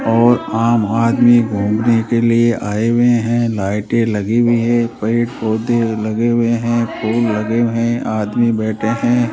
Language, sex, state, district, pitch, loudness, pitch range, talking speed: Hindi, male, Rajasthan, Jaipur, 115 Hz, -15 LUFS, 110-120 Hz, 160 wpm